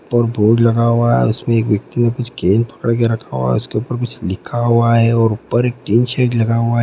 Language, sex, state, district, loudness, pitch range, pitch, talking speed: Hindi, male, Bihar, Gopalganj, -16 LUFS, 115-120 Hz, 115 Hz, 255 wpm